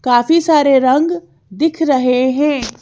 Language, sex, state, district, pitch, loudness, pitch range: Hindi, female, Madhya Pradesh, Bhopal, 285 Hz, -13 LUFS, 255-320 Hz